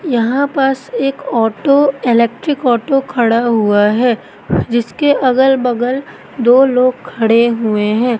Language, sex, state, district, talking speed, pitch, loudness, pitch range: Hindi, female, Madhya Pradesh, Katni, 125 wpm, 245 Hz, -13 LUFS, 235-270 Hz